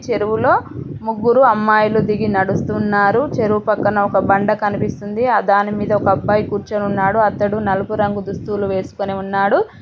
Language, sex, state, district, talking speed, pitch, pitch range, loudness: Telugu, female, Telangana, Mahabubabad, 140 wpm, 205 Hz, 200-215 Hz, -17 LUFS